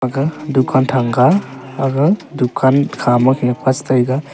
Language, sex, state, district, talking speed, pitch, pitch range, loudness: Wancho, male, Arunachal Pradesh, Longding, 125 wpm, 130 Hz, 130-140 Hz, -15 LUFS